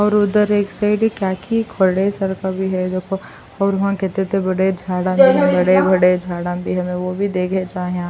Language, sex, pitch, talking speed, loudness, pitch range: Urdu, female, 190 Hz, 200 wpm, -18 LUFS, 185-200 Hz